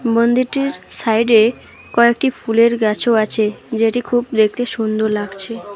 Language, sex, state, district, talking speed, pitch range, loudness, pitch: Bengali, female, West Bengal, Alipurduar, 115 wpm, 220-240 Hz, -16 LUFS, 230 Hz